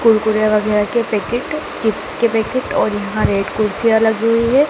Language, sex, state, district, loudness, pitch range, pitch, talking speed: Hindi, male, Madhya Pradesh, Dhar, -17 LUFS, 215-235 Hz, 220 Hz, 180 wpm